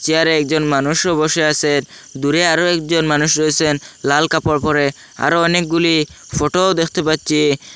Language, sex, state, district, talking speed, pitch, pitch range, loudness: Bengali, male, Assam, Hailakandi, 140 wpm, 155 Hz, 150-165 Hz, -15 LUFS